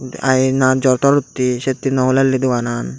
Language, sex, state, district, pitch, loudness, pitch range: Chakma, male, Tripura, Dhalai, 130 Hz, -16 LUFS, 125-135 Hz